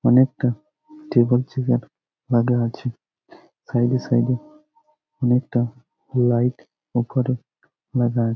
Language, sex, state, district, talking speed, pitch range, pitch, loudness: Bengali, male, West Bengal, Jhargram, 95 wpm, 120-130 Hz, 125 Hz, -22 LUFS